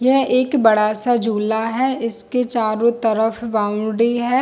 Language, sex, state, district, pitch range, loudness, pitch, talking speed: Hindi, female, Chhattisgarh, Bilaspur, 220-250 Hz, -18 LUFS, 230 Hz, 150 wpm